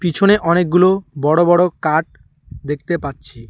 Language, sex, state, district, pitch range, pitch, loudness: Bengali, male, West Bengal, Alipurduar, 145-180 Hz, 170 Hz, -15 LUFS